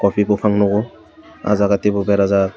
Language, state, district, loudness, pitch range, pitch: Kokborok, Tripura, West Tripura, -17 LUFS, 100-105 Hz, 100 Hz